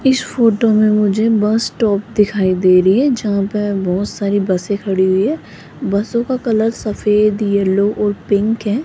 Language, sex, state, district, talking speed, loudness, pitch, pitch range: Hindi, female, Rajasthan, Jaipur, 170 wpm, -15 LUFS, 210 Hz, 200-225 Hz